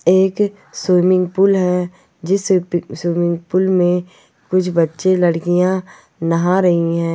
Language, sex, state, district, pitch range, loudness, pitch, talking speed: Hindi, female, Rajasthan, Churu, 170-185 Hz, -16 LUFS, 180 Hz, 115 wpm